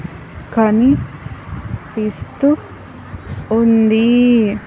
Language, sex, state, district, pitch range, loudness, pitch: Telugu, female, Andhra Pradesh, Sri Satya Sai, 220-245 Hz, -14 LUFS, 225 Hz